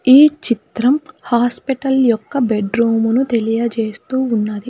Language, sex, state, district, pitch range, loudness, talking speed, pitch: Telugu, female, Telangana, Hyderabad, 225-265 Hz, -16 LUFS, 100 wpm, 235 Hz